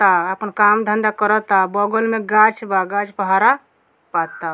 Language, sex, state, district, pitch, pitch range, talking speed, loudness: Bhojpuri, female, Bihar, Muzaffarpur, 210 Hz, 195-215 Hz, 185 wpm, -17 LUFS